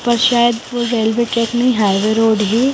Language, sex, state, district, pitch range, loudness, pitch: Hindi, female, Himachal Pradesh, Shimla, 220-240 Hz, -15 LUFS, 235 Hz